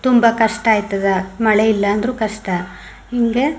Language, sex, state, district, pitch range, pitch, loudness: Kannada, female, Karnataka, Mysore, 200-235 Hz, 220 Hz, -17 LUFS